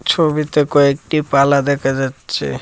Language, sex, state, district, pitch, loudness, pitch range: Bengali, male, Tripura, Dhalai, 140 Hz, -16 LUFS, 140-150 Hz